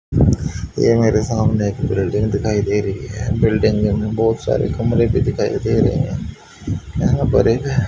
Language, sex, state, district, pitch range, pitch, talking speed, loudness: Hindi, male, Haryana, Jhajjar, 105-115 Hz, 110 Hz, 165 wpm, -18 LUFS